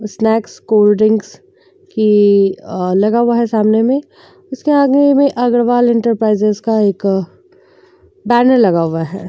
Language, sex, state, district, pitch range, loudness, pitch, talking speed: Hindi, female, Uttar Pradesh, Jyotiba Phule Nagar, 210-275 Hz, -13 LUFS, 225 Hz, 130 wpm